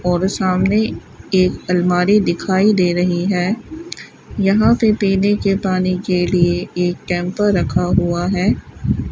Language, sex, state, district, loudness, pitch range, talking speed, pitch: Hindi, female, Rajasthan, Bikaner, -17 LUFS, 180-205 Hz, 130 wpm, 185 Hz